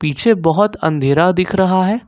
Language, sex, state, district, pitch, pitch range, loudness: Hindi, male, Jharkhand, Ranchi, 185 Hz, 160-200 Hz, -14 LUFS